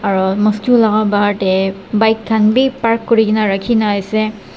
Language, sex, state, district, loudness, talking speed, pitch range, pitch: Nagamese, male, Nagaland, Dimapur, -14 LUFS, 170 wpm, 200-225 Hz, 215 Hz